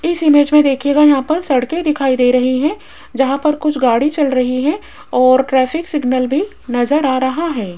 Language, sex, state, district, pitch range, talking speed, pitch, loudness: Hindi, female, Rajasthan, Jaipur, 255-300 Hz, 200 wpm, 275 Hz, -14 LUFS